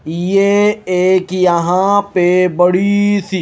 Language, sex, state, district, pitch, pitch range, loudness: Hindi, male, Punjab, Kapurthala, 185 Hz, 180-200 Hz, -13 LUFS